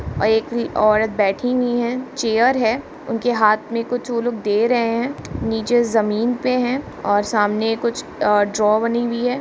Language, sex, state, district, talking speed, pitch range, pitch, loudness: Hindi, female, Bihar, Muzaffarpur, 180 wpm, 215-245 Hz, 230 Hz, -19 LUFS